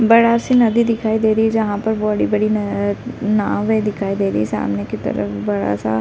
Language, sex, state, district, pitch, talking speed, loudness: Hindi, female, Uttar Pradesh, Varanasi, 210 Hz, 210 wpm, -18 LUFS